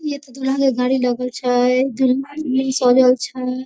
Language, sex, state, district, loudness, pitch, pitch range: Hindi, female, Bihar, Darbhanga, -18 LUFS, 260 Hz, 250-265 Hz